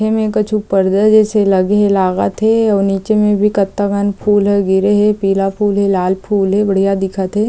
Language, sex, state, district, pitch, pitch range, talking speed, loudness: Chhattisgarhi, female, Chhattisgarh, Jashpur, 200 Hz, 195-210 Hz, 215 wpm, -13 LUFS